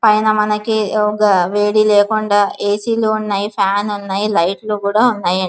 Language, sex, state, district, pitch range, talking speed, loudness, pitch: Telugu, female, Andhra Pradesh, Visakhapatnam, 200-215 Hz, 155 wpm, -15 LUFS, 210 Hz